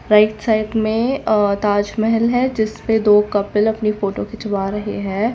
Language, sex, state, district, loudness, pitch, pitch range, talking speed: Hindi, female, Gujarat, Valsad, -18 LUFS, 215 Hz, 205-220 Hz, 155 wpm